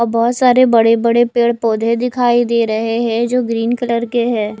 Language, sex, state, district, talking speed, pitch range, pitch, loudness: Hindi, female, Odisha, Nuapada, 210 wpm, 230-240 Hz, 235 Hz, -14 LUFS